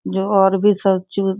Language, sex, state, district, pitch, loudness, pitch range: Hindi, female, Bihar, Sitamarhi, 195 Hz, -16 LUFS, 190-200 Hz